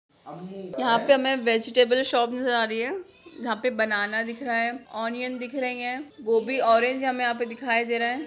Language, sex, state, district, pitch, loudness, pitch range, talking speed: Hindi, female, Bihar, Purnia, 240 Hz, -25 LUFS, 230-255 Hz, 210 wpm